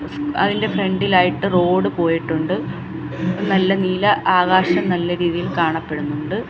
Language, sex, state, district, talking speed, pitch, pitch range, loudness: Malayalam, female, Kerala, Kollam, 90 wpm, 180 Hz, 165-190 Hz, -18 LUFS